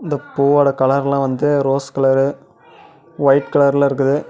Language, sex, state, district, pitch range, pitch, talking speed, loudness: Tamil, male, Tamil Nadu, Namakkal, 135-145 Hz, 140 Hz, 125 wpm, -16 LUFS